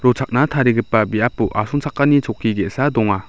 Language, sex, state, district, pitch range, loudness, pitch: Garo, male, Meghalaya, South Garo Hills, 110-140 Hz, -17 LUFS, 120 Hz